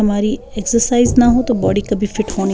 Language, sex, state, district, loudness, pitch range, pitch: Hindi, female, Bihar, Patna, -15 LUFS, 210-245 Hz, 220 Hz